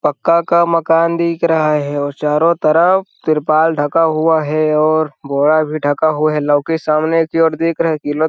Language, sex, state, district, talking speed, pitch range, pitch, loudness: Hindi, male, Chhattisgarh, Sarguja, 215 wpm, 150-165 Hz, 155 Hz, -14 LUFS